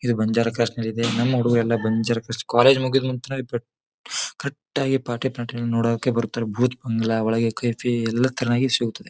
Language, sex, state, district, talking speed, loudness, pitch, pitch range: Kannada, male, Karnataka, Bijapur, 165 wpm, -22 LUFS, 120 Hz, 115-125 Hz